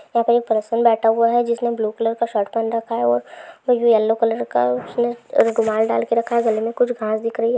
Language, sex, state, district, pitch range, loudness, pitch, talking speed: Hindi, female, Andhra Pradesh, Krishna, 220-235 Hz, -19 LUFS, 230 Hz, 230 wpm